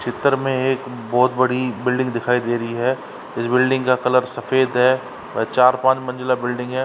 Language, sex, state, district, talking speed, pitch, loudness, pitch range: Hindi, male, Uttar Pradesh, Varanasi, 185 wpm, 125 Hz, -19 LUFS, 125-130 Hz